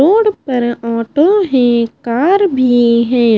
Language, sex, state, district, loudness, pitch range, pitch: Hindi, female, Haryana, Charkhi Dadri, -12 LUFS, 235-325 Hz, 245 Hz